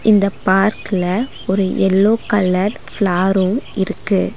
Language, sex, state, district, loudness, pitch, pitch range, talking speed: Tamil, female, Tamil Nadu, Nilgiris, -17 LUFS, 195 Hz, 190-210 Hz, 95 wpm